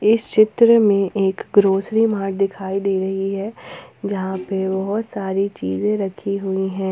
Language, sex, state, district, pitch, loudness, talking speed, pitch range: Hindi, female, Jharkhand, Ranchi, 195 Hz, -19 LUFS, 155 wpm, 190-210 Hz